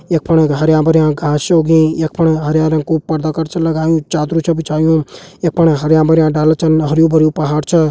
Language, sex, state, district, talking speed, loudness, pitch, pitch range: Hindi, male, Uttarakhand, Tehri Garhwal, 175 wpm, -13 LUFS, 160 Hz, 155-160 Hz